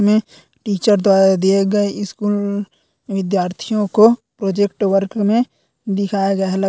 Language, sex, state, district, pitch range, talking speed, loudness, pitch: Hindi, female, Chhattisgarh, Korba, 195-210 Hz, 125 wpm, -17 LUFS, 200 Hz